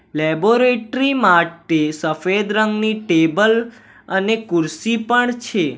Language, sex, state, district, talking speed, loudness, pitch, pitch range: Gujarati, male, Gujarat, Valsad, 95 wpm, -17 LUFS, 215 Hz, 170-230 Hz